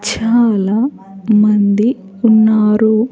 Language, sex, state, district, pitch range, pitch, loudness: Telugu, female, Andhra Pradesh, Sri Satya Sai, 205-225 Hz, 220 Hz, -13 LUFS